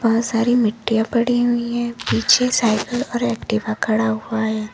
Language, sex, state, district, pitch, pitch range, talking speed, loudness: Hindi, female, Uttar Pradesh, Lalitpur, 230 Hz, 220-240 Hz, 165 wpm, -19 LUFS